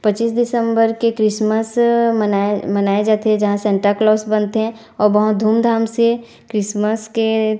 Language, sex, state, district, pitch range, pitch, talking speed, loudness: Chhattisgarhi, female, Chhattisgarh, Raigarh, 210-225 Hz, 215 Hz, 135 wpm, -16 LUFS